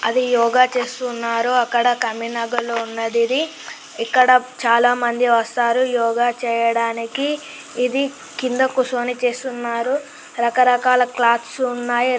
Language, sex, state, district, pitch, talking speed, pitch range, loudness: Telugu, male, Andhra Pradesh, Guntur, 245 Hz, 105 wpm, 235-255 Hz, -19 LUFS